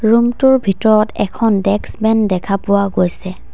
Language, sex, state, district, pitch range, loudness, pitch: Assamese, female, Assam, Sonitpur, 195-220 Hz, -14 LUFS, 210 Hz